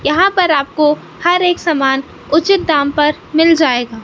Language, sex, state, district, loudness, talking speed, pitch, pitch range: Hindi, male, Madhya Pradesh, Katni, -13 LUFS, 165 wpm, 305 Hz, 285-345 Hz